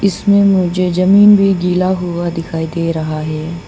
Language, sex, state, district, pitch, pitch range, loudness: Hindi, female, Arunachal Pradesh, Papum Pare, 180 Hz, 165-195 Hz, -13 LUFS